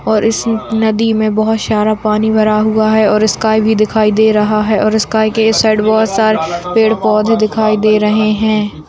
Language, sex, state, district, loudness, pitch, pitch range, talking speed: Hindi, female, Bihar, Madhepura, -12 LUFS, 215 Hz, 215-220 Hz, 205 wpm